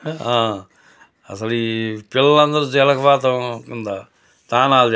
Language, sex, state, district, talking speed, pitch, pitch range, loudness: Telugu, male, Andhra Pradesh, Guntur, 110 wpm, 120 Hz, 110-140 Hz, -17 LUFS